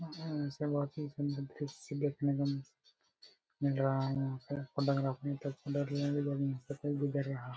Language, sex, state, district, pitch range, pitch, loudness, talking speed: Hindi, male, Jharkhand, Jamtara, 135-145 Hz, 140 Hz, -36 LUFS, 105 wpm